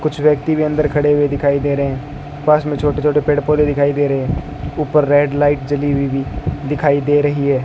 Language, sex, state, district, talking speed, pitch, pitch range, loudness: Hindi, male, Rajasthan, Bikaner, 235 wpm, 145 Hz, 140-150 Hz, -16 LUFS